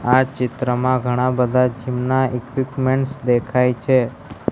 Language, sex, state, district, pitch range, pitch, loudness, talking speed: Gujarati, male, Gujarat, Gandhinagar, 125-130 Hz, 125 Hz, -19 LUFS, 105 wpm